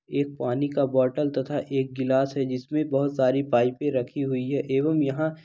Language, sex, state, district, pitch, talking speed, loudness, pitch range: Angika, male, Bihar, Madhepura, 135 Hz, 200 wpm, -25 LUFS, 130-145 Hz